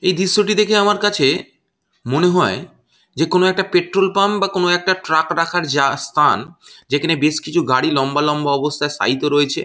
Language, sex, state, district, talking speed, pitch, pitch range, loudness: Bengali, male, West Bengal, Malda, 180 wpm, 170 Hz, 145-185 Hz, -17 LUFS